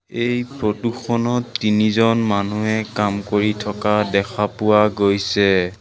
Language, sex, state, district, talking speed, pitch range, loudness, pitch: Assamese, male, Assam, Sonitpur, 115 wpm, 105-115 Hz, -19 LUFS, 105 Hz